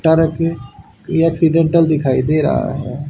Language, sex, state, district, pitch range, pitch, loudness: Hindi, male, Haryana, Charkhi Dadri, 130-165 Hz, 155 Hz, -15 LUFS